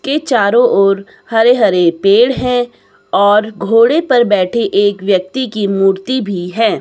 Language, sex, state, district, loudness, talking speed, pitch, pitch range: Hindi, female, Himachal Pradesh, Shimla, -12 LUFS, 150 wpm, 230 Hz, 200-265 Hz